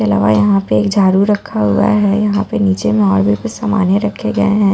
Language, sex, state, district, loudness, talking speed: Hindi, female, Bihar, Katihar, -13 LUFS, 255 wpm